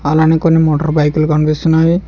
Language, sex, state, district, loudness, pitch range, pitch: Telugu, male, Telangana, Hyderabad, -12 LUFS, 155-160 Hz, 155 Hz